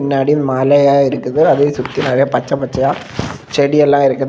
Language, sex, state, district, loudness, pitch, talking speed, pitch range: Tamil, male, Tamil Nadu, Kanyakumari, -14 LUFS, 140 Hz, 155 wpm, 135-145 Hz